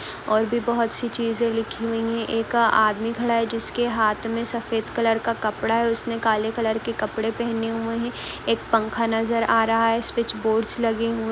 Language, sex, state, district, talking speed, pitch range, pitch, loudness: Hindi, female, Uttar Pradesh, Budaun, 205 wpm, 225-230 Hz, 230 Hz, -23 LUFS